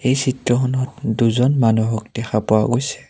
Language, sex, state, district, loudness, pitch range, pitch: Assamese, male, Assam, Kamrup Metropolitan, -18 LUFS, 110-130 Hz, 120 Hz